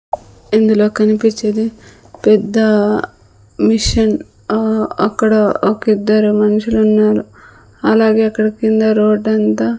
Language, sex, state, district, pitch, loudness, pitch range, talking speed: Telugu, female, Andhra Pradesh, Sri Satya Sai, 215 Hz, -14 LUFS, 210-220 Hz, 100 wpm